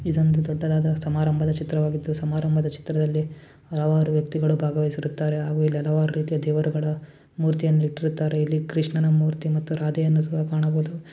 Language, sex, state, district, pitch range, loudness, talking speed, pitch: Kannada, female, Karnataka, Shimoga, 150-155 Hz, -24 LUFS, 125 wpm, 155 Hz